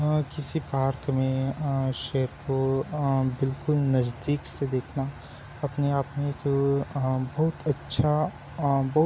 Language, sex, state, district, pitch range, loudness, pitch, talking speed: Hindi, male, Chhattisgarh, Bilaspur, 135-145 Hz, -27 LUFS, 140 Hz, 145 wpm